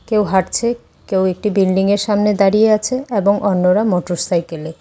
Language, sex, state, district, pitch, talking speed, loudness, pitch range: Bengali, female, West Bengal, Cooch Behar, 200 Hz, 135 wpm, -16 LUFS, 185-215 Hz